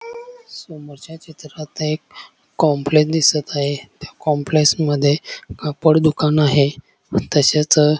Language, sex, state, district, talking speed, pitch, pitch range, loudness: Marathi, male, Maharashtra, Dhule, 105 wpm, 150 Hz, 145-160 Hz, -17 LUFS